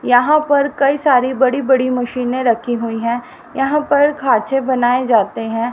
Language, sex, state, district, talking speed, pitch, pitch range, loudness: Hindi, female, Haryana, Rohtak, 165 wpm, 255 Hz, 240-280 Hz, -15 LUFS